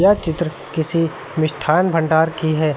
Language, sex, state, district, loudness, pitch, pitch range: Hindi, male, Uttar Pradesh, Lucknow, -19 LUFS, 160 Hz, 155-170 Hz